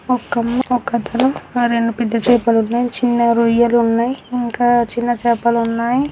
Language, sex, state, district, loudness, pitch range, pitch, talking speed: Telugu, female, Andhra Pradesh, Guntur, -16 LUFS, 235-245 Hz, 235 Hz, 135 wpm